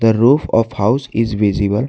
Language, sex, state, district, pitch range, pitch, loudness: English, male, Jharkhand, Garhwa, 105-125 Hz, 115 Hz, -15 LUFS